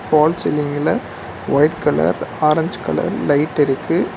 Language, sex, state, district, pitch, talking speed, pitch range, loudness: Tamil, male, Tamil Nadu, Nilgiris, 150 Hz, 115 wpm, 145-155 Hz, -18 LUFS